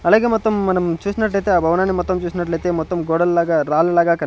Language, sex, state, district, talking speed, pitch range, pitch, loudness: Telugu, male, Andhra Pradesh, Sri Satya Sai, 170 wpm, 170-190 Hz, 175 Hz, -18 LUFS